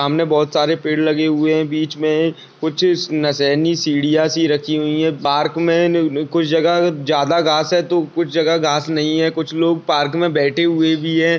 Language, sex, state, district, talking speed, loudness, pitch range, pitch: Hindi, male, Chhattisgarh, Sarguja, 205 wpm, -17 LUFS, 150-165 Hz, 160 Hz